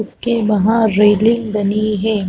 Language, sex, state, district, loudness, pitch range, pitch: Hindi, female, Chhattisgarh, Rajnandgaon, -15 LUFS, 210-225 Hz, 215 Hz